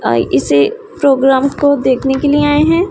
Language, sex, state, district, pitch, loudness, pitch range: Hindi, female, Punjab, Pathankot, 285 Hz, -12 LUFS, 270-325 Hz